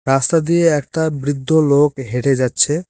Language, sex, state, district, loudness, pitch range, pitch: Bengali, male, West Bengal, Cooch Behar, -16 LUFS, 135-160 Hz, 145 Hz